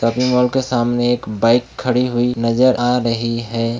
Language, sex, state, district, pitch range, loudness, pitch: Hindi, male, Bihar, Begusarai, 115-125 Hz, -17 LUFS, 120 Hz